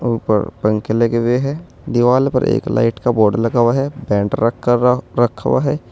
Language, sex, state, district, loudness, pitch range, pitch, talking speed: Hindi, male, Uttar Pradesh, Saharanpur, -16 LUFS, 115-130 Hz, 120 Hz, 200 wpm